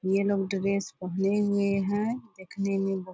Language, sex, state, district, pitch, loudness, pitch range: Hindi, female, Bihar, Purnia, 195 Hz, -28 LUFS, 195-200 Hz